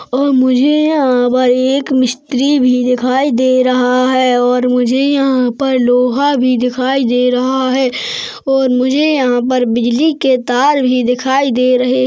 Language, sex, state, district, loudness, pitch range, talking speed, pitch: Hindi, male, Chhattisgarh, Rajnandgaon, -12 LUFS, 250-270 Hz, 160 wpm, 255 Hz